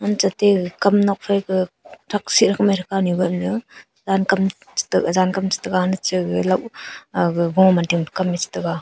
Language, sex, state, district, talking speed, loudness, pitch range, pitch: Wancho, female, Arunachal Pradesh, Longding, 170 wpm, -19 LUFS, 180-200 Hz, 190 Hz